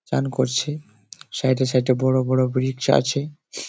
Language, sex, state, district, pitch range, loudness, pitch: Bengali, male, West Bengal, Malda, 130-140 Hz, -21 LUFS, 130 Hz